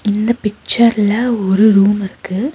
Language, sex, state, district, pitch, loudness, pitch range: Tamil, female, Tamil Nadu, Nilgiris, 210 Hz, -14 LUFS, 200-235 Hz